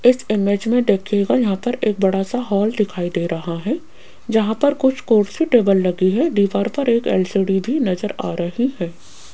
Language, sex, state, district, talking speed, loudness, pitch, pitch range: Hindi, female, Rajasthan, Jaipur, 195 wpm, -19 LUFS, 205 Hz, 190-245 Hz